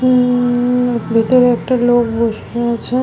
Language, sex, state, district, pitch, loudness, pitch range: Bengali, female, West Bengal, Malda, 245 Hz, -14 LUFS, 235-250 Hz